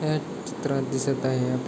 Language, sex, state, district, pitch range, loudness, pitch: Marathi, male, Maharashtra, Chandrapur, 130-150 Hz, -27 LUFS, 135 Hz